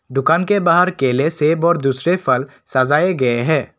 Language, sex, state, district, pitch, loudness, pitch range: Hindi, male, Assam, Kamrup Metropolitan, 150 Hz, -16 LUFS, 130-175 Hz